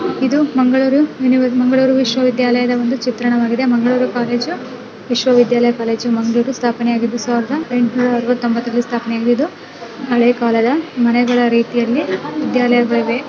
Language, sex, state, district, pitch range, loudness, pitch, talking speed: Kannada, female, Karnataka, Dakshina Kannada, 235-255 Hz, -15 LUFS, 245 Hz, 115 wpm